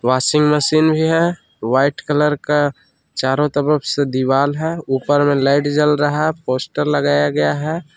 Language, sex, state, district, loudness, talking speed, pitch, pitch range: Hindi, male, Jharkhand, Palamu, -17 LUFS, 165 wpm, 145 Hz, 135-150 Hz